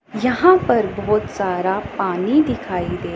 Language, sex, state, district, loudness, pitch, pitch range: Hindi, female, Punjab, Pathankot, -18 LUFS, 210 Hz, 195-250 Hz